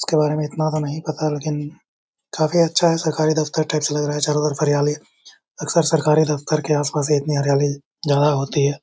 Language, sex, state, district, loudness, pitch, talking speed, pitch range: Hindi, male, Bihar, Bhagalpur, -20 LUFS, 150 Hz, 230 wpm, 145-155 Hz